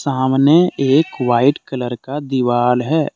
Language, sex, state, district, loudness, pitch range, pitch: Hindi, male, Jharkhand, Deoghar, -16 LUFS, 125-145 Hz, 135 Hz